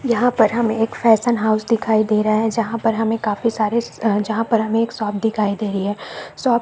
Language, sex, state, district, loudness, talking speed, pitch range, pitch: Hindi, female, Chhattisgarh, Raigarh, -19 LUFS, 235 wpm, 215-230 Hz, 225 Hz